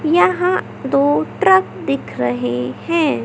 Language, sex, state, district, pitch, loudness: Hindi, male, Madhya Pradesh, Katni, 285 Hz, -17 LUFS